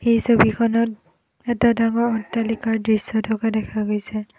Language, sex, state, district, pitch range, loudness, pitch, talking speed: Assamese, female, Assam, Kamrup Metropolitan, 215-230 Hz, -20 LUFS, 225 Hz, 125 wpm